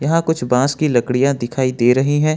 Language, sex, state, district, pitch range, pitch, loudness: Hindi, male, Jharkhand, Ranchi, 125-150 Hz, 135 Hz, -17 LUFS